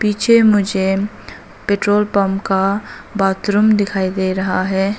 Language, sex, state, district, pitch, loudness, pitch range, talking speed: Hindi, female, Arunachal Pradesh, Papum Pare, 200 Hz, -16 LUFS, 190-210 Hz, 120 wpm